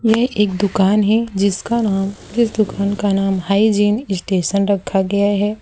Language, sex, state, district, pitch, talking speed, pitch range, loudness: Hindi, female, Gujarat, Valsad, 200 Hz, 160 wpm, 195-215 Hz, -17 LUFS